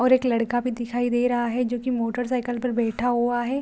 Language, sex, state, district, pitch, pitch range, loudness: Hindi, female, Bihar, Vaishali, 245 Hz, 240-250 Hz, -24 LUFS